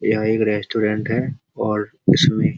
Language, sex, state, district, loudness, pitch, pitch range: Hindi, male, Uttar Pradesh, Muzaffarnagar, -20 LUFS, 110 Hz, 105-115 Hz